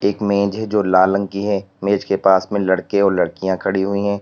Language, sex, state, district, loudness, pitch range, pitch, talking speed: Hindi, male, Uttar Pradesh, Lalitpur, -18 LUFS, 95-100 Hz, 100 Hz, 255 wpm